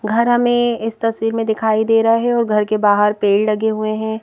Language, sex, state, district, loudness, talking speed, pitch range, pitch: Hindi, female, Madhya Pradesh, Bhopal, -16 LUFS, 240 wpm, 215-225 Hz, 220 Hz